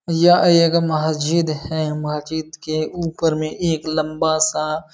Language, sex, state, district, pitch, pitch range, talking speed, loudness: Hindi, male, Uttar Pradesh, Jalaun, 155 Hz, 155-165 Hz, 145 wpm, -19 LUFS